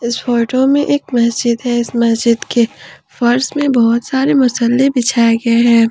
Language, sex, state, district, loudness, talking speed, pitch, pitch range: Hindi, female, Jharkhand, Ranchi, -13 LUFS, 170 wpm, 240 Hz, 235-260 Hz